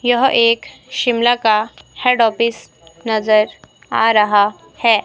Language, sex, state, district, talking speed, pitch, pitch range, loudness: Hindi, female, Himachal Pradesh, Shimla, 120 wpm, 225 Hz, 215-235 Hz, -15 LUFS